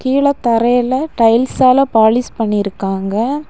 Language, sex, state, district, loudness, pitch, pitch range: Tamil, female, Tamil Nadu, Kanyakumari, -14 LUFS, 240 Hz, 220-265 Hz